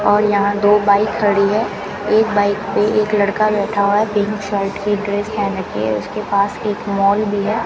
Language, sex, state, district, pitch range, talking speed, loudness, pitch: Hindi, female, Rajasthan, Bikaner, 200-210 Hz, 210 wpm, -17 LUFS, 205 Hz